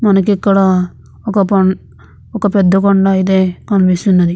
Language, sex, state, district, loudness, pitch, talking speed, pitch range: Telugu, female, Andhra Pradesh, Visakhapatnam, -12 LUFS, 195 Hz, 125 wpm, 185-200 Hz